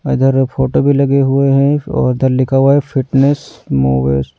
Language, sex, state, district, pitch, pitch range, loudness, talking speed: Hindi, male, Delhi, New Delhi, 135 Hz, 130-140 Hz, -13 LUFS, 190 wpm